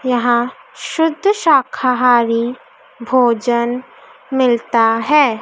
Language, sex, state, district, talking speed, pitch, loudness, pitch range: Hindi, female, Madhya Pradesh, Dhar, 65 wpm, 250 Hz, -15 LUFS, 235-280 Hz